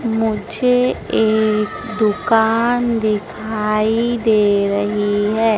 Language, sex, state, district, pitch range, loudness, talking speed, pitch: Hindi, female, Madhya Pradesh, Dhar, 210-225 Hz, -17 LUFS, 75 wpm, 220 Hz